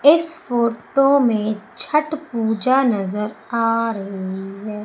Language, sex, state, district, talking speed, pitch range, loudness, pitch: Hindi, female, Madhya Pradesh, Umaria, 110 wpm, 210-270 Hz, -20 LUFS, 230 Hz